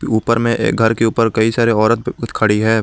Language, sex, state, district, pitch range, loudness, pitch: Hindi, male, Jharkhand, Garhwa, 110-115 Hz, -15 LUFS, 115 Hz